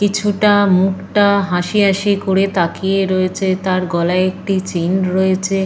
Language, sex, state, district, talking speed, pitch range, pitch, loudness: Bengali, female, Jharkhand, Jamtara, 125 wpm, 185-200 Hz, 190 Hz, -15 LUFS